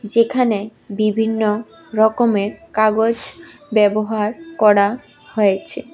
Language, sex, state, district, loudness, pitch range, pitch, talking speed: Bengali, female, Tripura, West Tripura, -18 LUFS, 210-235 Hz, 220 Hz, 70 wpm